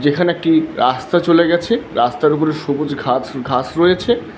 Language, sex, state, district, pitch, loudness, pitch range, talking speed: Bengali, male, West Bengal, Alipurduar, 155 Hz, -16 LUFS, 135-175 Hz, 150 wpm